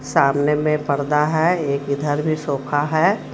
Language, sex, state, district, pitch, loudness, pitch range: Hindi, female, Jharkhand, Ranchi, 145 Hz, -19 LUFS, 140-155 Hz